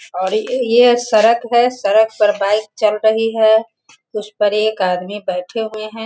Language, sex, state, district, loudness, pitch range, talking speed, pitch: Hindi, female, Bihar, Sitamarhi, -15 LUFS, 210-230 Hz, 170 wpm, 220 Hz